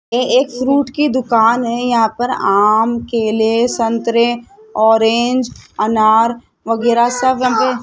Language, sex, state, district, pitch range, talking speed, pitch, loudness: Hindi, male, Rajasthan, Jaipur, 225-250 Hz, 115 wpm, 235 Hz, -14 LUFS